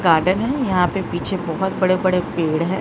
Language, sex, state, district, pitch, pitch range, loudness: Hindi, female, Maharashtra, Mumbai Suburban, 185 Hz, 175-190 Hz, -19 LUFS